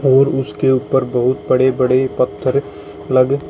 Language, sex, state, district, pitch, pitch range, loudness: Hindi, male, Haryana, Jhajjar, 130 Hz, 125-135 Hz, -16 LUFS